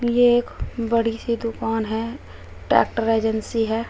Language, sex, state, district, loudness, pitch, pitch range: Hindi, female, Uttar Pradesh, Shamli, -22 LUFS, 230 Hz, 225-235 Hz